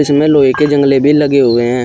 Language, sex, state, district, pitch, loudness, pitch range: Hindi, male, Uttar Pradesh, Shamli, 140 Hz, -10 LUFS, 135-145 Hz